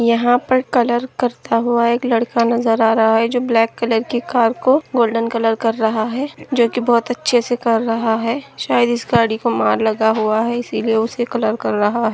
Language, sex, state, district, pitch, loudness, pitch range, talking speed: Hindi, female, Maharashtra, Solapur, 235 Hz, -17 LUFS, 225-240 Hz, 220 wpm